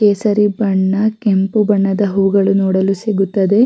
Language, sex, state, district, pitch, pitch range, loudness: Kannada, female, Karnataka, Raichur, 200 Hz, 195-210 Hz, -14 LUFS